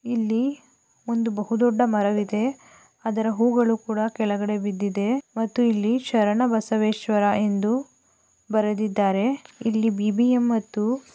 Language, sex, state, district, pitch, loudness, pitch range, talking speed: Kannada, female, Karnataka, Gulbarga, 225 Hz, -23 LUFS, 210-240 Hz, 90 wpm